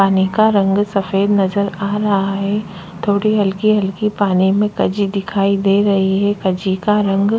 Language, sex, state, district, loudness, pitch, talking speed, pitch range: Hindi, female, Chhattisgarh, Korba, -16 LUFS, 200 Hz, 160 wpm, 195-205 Hz